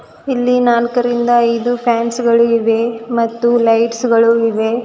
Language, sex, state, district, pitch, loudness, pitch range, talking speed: Kannada, female, Karnataka, Bidar, 235 Hz, -14 LUFS, 230-240 Hz, 125 wpm